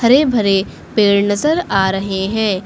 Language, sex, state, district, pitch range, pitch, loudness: Hindi, female, Uttar Pradesh, Lucknow, 195-230 Hz, 205 Hz, -15 LUFS